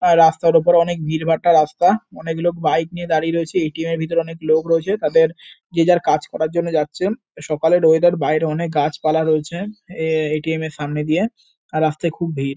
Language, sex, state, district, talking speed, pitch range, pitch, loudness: Bengali, male, West Bengal, North 24 Parganas, 205 wpm, 155-175 Hz, 165 Hz, -18 LUFS